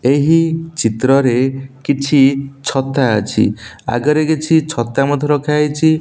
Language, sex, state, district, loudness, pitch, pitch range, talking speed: Odia, male, Odisha, Nuapada, -15 LUFS, 140 Hz, 135-150 Hz, 110 wpm